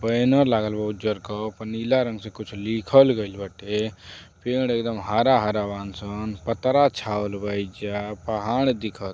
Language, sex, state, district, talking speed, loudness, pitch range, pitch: Bhojpuri, male, Uttar Pradesh, Deoria, 175 wpm, -24 LUFS, 105-115 Hz, 110 Hz